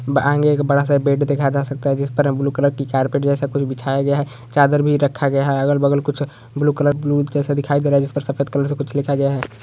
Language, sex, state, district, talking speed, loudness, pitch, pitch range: Hindi, male, Karnataka, Gulbarga, 270 wpm, -18 LUFS, 140 Hz, 140-145 Hz